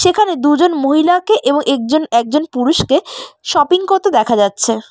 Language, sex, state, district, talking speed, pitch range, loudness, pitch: Bengali, female, West Bengal, Cooch Behar, 135 wpm, 265-365 Hz, -13 LUFS, 300 Hz